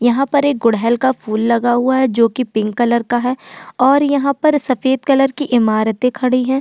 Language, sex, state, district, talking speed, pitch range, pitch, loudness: Hindi, female, Uttar Pradesh, Jyotiba Phule Nagar, 210 wpm, 235-270 Hz, 255 Hz, -15 LUFS